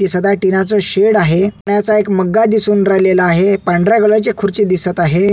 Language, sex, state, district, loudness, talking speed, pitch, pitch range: Marathi, male, Maharashtra, Solapur, -12 LUFS, 190 wpm, 195 Hz, 185-210 Hz